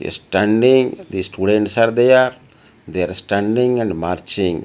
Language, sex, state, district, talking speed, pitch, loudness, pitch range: English, male, Odisha, Malkangiri, 140 wpm, 105 Hz, -16 LUFS, 95-125 Hz